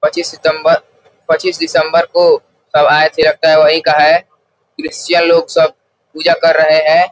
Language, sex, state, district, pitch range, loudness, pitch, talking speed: Hindi, male, Uttar Pradesh, Gorakhpur, 155-175 Hz, -11 LUFS, 160 Hz, 170 wpm